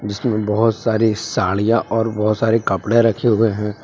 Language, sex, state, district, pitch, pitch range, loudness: Hindi, male, Jharkhand, Palamu, 110 Hz, 105-115 Hz, -17 LUFS